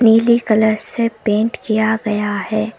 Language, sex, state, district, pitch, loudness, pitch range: Hindi, female, Karnataka, Koppal, 220 Hz, -16 LUFS, 215-225 Hz